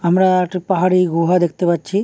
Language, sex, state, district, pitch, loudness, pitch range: Bengali, male, West Bengal, Kolkata, 180 Hz, -16 LUFS, 175-185 Hz